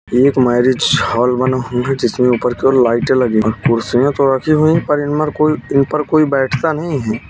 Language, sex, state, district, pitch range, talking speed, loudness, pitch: Hindi, male, Uttar Pradesh, Etah, 125-150 Hz, 205 wpm, -14 LUFS, 130 Hz